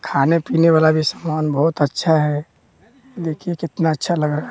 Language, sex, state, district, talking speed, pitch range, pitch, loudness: Hindi, male, Bihar, West Champaran, 175 wpm, 150-165 Hz, 160 Hz, -18 LUFS